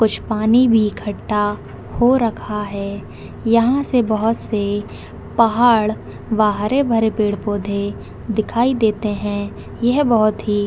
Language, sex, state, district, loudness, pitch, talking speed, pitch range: Hindi, female, Chhattisgarh, Raigarh, -18 LUFS, 215 Hz, 120 wpm, 205-230 Hz